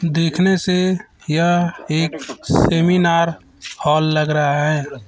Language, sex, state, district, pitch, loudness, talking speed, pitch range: Hindi, male, Chhattisgarh, Raipur, 165 Hz, -17 LUFS, 105 wpm, 155-175 Hz